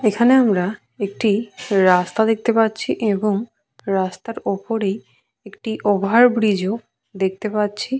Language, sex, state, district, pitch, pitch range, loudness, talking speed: Bengali, female, West Bengal, Purulia, 210 Hz, 195-225 Hz, -19 LUFS, 105 wpm